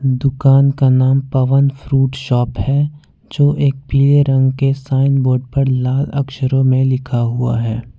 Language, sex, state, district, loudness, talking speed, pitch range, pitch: Hindi, male, Jharkhand, Ranchi, -15 LUFS, 160 wpm, 130-140 Hz, 135 Hz